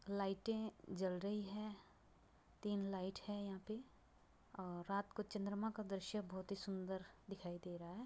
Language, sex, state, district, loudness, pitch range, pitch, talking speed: Hindi, female, Uttar Pradesh, Budaun, -47 LUFS, 190-210 Hz, 200 Hz, 180 wpm